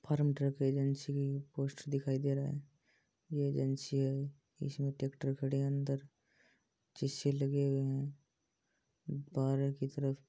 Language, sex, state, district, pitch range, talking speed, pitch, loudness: Hindi, female, Rajasthan, Churu, 135-140 Hz, 140 wpm, 140 Hz, -37 LUFS